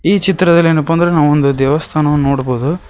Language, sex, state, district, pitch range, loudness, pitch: Kannada, male, Karnataka, Koppal, 140-170 Hz, -12 LUFS, 155 Hz